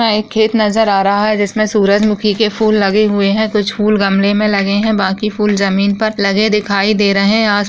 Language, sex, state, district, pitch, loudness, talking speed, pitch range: Hindi, female, Rajasthan, Churu, 210 Hz, -13 LUFS, 235 wpm, 200-215 Hz